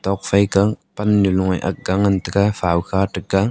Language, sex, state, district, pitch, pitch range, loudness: Wancho, male, Arunachal Pradesh, Longding, 95 Hz, 95-100 Hz, -18 LUFS